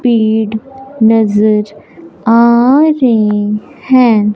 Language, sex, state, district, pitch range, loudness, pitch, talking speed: Hindi, male, Punjab, Fazilka, 210-250 Hz, -10 LUFS, 220 Hz, 70 wpm